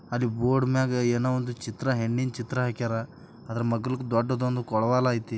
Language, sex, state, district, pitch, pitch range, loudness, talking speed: Kannada, male, Karnataka, Bijapur, 125 Hz, 115-125 Hz, -27 LUFS, 165 wpm